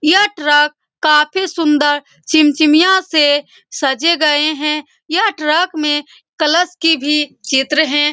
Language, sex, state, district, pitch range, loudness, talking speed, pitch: Hindi, female, Bihar, Saran, 295-330 Hz, -14 LUFS, 125 wpm, 305 Hz